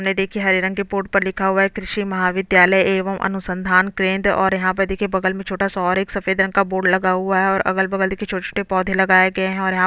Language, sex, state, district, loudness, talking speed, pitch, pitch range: Hindi, female, Chhattisgarh, Bastar, -18 LUFS, 105 wpm, 190 Hz, 185-195 Hz